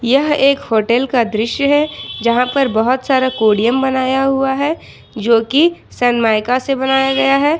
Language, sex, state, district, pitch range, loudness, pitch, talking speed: Hindi, female, Jharkhand, Ranchi, 235-275 Hz, -15 LUFS, 265 Hz, 165 wpm